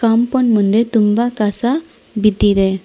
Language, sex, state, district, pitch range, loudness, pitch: Kannada, female, Karnataka, Bangalore, 210-240 Hz, -15 LUFS, 225 Hz